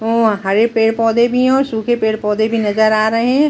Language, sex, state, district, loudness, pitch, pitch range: Hindi, female, Chhattisgarh, Balrampur, -14 LUFS, 225 Hz, 220-235 Hz